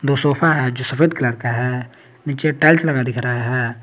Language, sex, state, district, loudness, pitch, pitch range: Hindi, male, Jharkhand, Garhwa, -18 LUFS, 130 Hz, 125-150 Hz